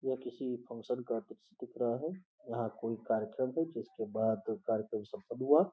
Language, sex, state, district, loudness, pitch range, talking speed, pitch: Hindi, male, Uttar Pradesh, Gorakhpur, -37 LUFS, 110-130 Hz, 155 wpm, 120 Hz